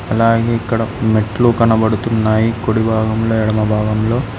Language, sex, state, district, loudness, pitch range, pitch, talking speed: Telugu, male, Telangana, Hyderabad, -15 LUFS, 110-115 Hz, 110 Hz, 95 wpm